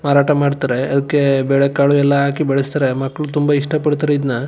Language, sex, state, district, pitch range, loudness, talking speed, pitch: Kannada, male, Karnataka, Chamarajanagar, 135-145 Hz, -16 LUFS, 175 wpm, 140 Hz